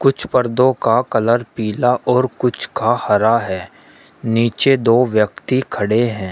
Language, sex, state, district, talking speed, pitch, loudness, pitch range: Hindi, male, Uttar Pradesh, Shamli, 140 wpm, 115 Hz, -16 LUFS, 110-125 Hz